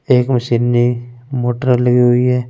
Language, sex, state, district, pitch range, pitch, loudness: Hindi, male, Punjab, Fazilka, 120-125 Hz, 125 Hz, -14 LUFS